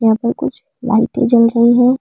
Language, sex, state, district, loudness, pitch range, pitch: Hindi, female, Delhi, New Delhi, -14 LUFS, 230-245 Hz, 235 Hz